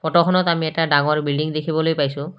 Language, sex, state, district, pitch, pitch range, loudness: Assamese, male, Assam, Kamrup Metropolitan, 160 Hz, 150-165 Hz, -19 LUFS